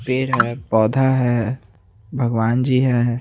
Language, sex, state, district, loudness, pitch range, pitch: Hindi, male, Chandigarh, Chandigarh, -18 LUFS, 115-130 Hz, 120 Hz